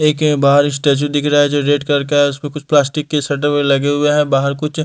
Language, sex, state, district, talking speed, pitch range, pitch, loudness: Hindi, male, Delhi, New Delhi, 270 wpm, 145-150 Hz, 145 Hz, -14 LUFS